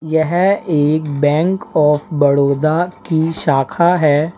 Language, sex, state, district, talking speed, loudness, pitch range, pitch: Hindi, male, Uttar Pradesh, Lalitpur, 110 wpm, -15 LUFS, 145-170 Hz, 155 Hz